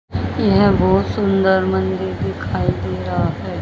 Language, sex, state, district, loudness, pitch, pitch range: Hindi, female, Haryana, Jhajjar, -18 LUFS, 95 Hz, 90-100 Hz